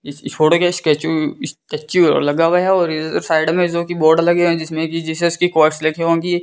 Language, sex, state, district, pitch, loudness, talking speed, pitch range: Hindi, female, Rajasthan, Bikaner, 165 Hz, -16 LUFS, 205 wpm, 155-175 Hz